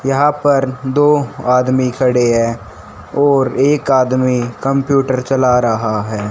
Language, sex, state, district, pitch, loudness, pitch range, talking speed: Hindi, male, Haryana, Charkhi Dadri, 130 Hz, -14 LUFS, 120-135 Hz, 125 wpm